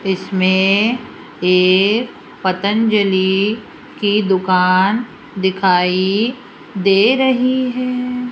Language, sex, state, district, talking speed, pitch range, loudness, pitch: Hindi, female, Rajasthan, Jaipur, 65 wpm, 190-245 Hz, -15 LUFS, 200 Hz